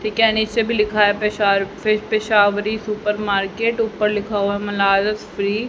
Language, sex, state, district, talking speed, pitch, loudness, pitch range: Hindi, female, Haryana, Charkhi Dadri, 170 wpm, 210 Hz, -19 LUFS, 205-215 Hz